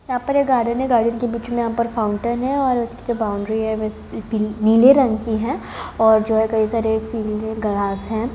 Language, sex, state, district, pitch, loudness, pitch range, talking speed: Hindi, female, Bihar, Purnia, 225 Hz, -19 LUFS, 220-240 Hz, 235 wpm